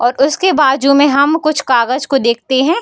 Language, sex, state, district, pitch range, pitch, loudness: Hindi, female, Bihar, Darbhanga, 260-300 Hz, 275 Hz, -12 LUFS